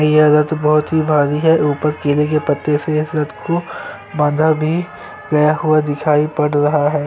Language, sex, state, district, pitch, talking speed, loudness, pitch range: Hindi, male, Chhattisgarh, Sukma, 150 Hz, 180 wpm, -16 LUFS, 150-155 Hz